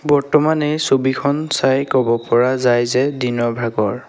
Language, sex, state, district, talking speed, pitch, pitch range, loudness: Assamese, male, Assam, Sonitpur, 145 wpm, 130 Hz, 120-145 Hz, -17 LUFS